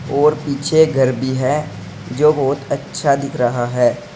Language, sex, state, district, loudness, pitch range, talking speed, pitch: Hindi, male, Uttar Pradesh, Saharanpur, -17 LUFS, 125-150 Hz, 160 wpm, 140 Hz